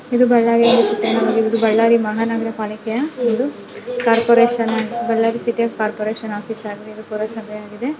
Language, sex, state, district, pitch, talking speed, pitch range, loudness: Kannada, female, Karnataka, Bellary, 225 Hz, 135 wpm, 215-235 Hz, -18 LUFS